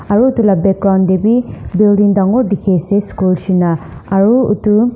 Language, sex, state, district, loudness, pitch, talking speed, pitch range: Nagamese, female, Nagaland, Dimapur, -13 LUFS, 200 Hz, 170 wpm, 190-215 Hz